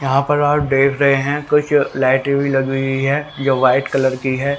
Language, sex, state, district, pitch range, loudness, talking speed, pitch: Hindi, male, Haryana, Rohtak, 135-145 Hz, -16 LUFS, 220 wpm, 140 Hz